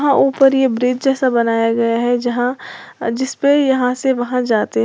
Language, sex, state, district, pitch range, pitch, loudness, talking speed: Hindi, female, Uttar Pradesh, Lalitpur, 235-270 Hz, 250 Hz, -16 LUFS, 200 wpm